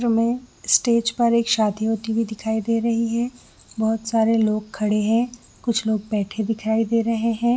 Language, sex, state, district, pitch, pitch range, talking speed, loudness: Hindi, female, Chhattisgarh, Bilaspur, 225 Hz, 220-235 Hz, 190 wpm, -22 LUFS